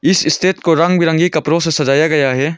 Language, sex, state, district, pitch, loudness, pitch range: Hindi, male, Arunachal Pradesh, Longding, 165 Hz, -13 LUFS, 150-170 Hz